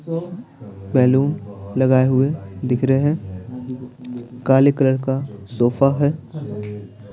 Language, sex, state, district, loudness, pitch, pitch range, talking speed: Hindi, male, Bihar, Patna, -19 LUFS, 130 Hz, 115-135 Hz, 95 wpm